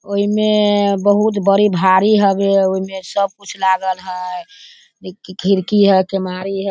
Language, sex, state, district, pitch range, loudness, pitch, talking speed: Hindi, female, Bihar, Sitamarhi, 190-205 Hz, -15 LUFS, 195 Hz, 145 wpm